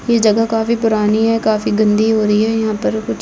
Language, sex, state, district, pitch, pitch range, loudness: Hindi, female, Bihar, Begusarai, 220 Hz, 210-225 Hz, -15 LUFS